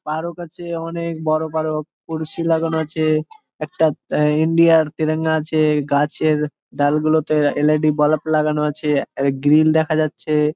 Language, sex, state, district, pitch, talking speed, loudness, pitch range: Bengali, male, West Bengal, Malda, 155 Hz, 115 wpm, -19 LUFS, 150-160 Hz